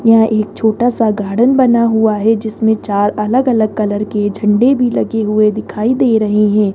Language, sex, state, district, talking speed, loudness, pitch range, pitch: Hindi, female, Rajasthan, Jaipur, 195 wpm, -13 LUFS, 210-230 Hz, 220 Hz